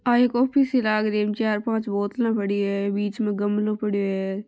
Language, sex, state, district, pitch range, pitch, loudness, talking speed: Marwari, female, Rajasthan, Nagaur, 205-225 Hz, 210 Hz, -23 LUFS, 240 wpm